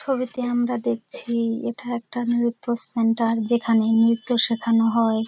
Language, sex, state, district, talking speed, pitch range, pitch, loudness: Bengali, female, West Bengal, Dakshin Dinajpur, 125 wpm, 230-240 Hz, 235 Hz, -22 LUFS